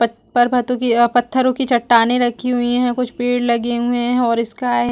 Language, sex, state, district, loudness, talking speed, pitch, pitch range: Hindi, female, Chhattisgarh, Balrampur, -17 LUFS, 220 wpm, 245 Hz, 235-245 Hz